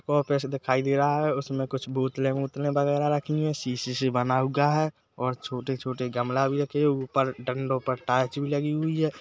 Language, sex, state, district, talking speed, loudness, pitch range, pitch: Hindi, male, Chhattisgarh, Kabirdham, 215 wpm, -27 LUFS, 130-145 Hz, 135 Hz